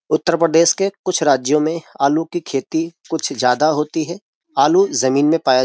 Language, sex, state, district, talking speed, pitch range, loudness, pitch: Hindi, male, Uttar Pradesh, Jyotiba Phule Nagar, 190 wpm, 145-170 Hz, -17 LUFS, 160 Hz